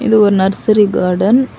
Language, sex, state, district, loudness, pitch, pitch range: Tamil, female, Tamil Nadu, Kanyakumari, -12 LUFS, 210 Hz, 195-220 Hz